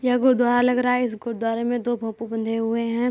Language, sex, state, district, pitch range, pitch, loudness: Hindi, female, Uttar Pradesh, Jyotiba Phule Nagar, 225-250 Hz, 240 Hz, -22 LUFS